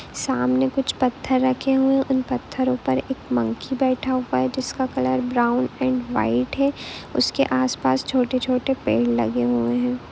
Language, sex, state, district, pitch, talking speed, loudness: Hindi, female, Jharkhand, Jamtara, 245 Hz, 170 wpm, -22 LUFS